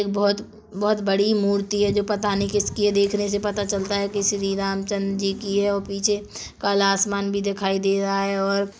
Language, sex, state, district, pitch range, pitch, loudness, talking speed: Hindi, female, Chhattisgarh, Kabirdham, 195-205 Hz, 200 Hz, -22 LUFS, 225 wpm